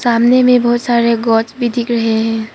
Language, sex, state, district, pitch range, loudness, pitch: Hindi, female, Arunachal Pradesh, Papum Pare, 225-240 Hz, -13 LUFS, 235 Hz